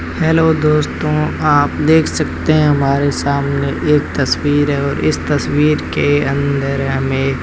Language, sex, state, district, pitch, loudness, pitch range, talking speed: Hindi, male, Rajasthan, Bikaner, 145 Hz, -15 LUFS, 140-150 Hz, 135 wpm